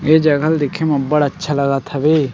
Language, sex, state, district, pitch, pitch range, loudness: Chhattisgarhi, male, Chhattisgarh, Sukma, 150 Hz, 140-155 Hz, -16 LUFS